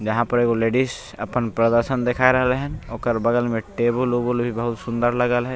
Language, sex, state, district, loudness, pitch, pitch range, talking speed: Maithili, male, Bihar, Begusarai, -21 LUFS, 120 Hz, 115-125 Hz, 205 wpm